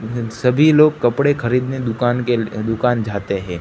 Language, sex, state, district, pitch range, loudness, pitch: Hindi, male, Gujarat, Gandhinagar, 110-125 Hz, -17 LUFS, 120 Hz